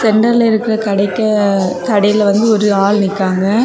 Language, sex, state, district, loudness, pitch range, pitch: Tamil, female, Tamil Nadu, Kanyakumari, -13 LUFS, 200-220 Hz, 210 Hz